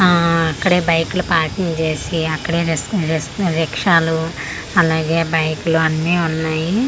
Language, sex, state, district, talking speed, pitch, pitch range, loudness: Telugu, female, Andhra Pradesh, Manyam, 120 wpm, 165 Hz, 160-175 Hz, -17 LUFS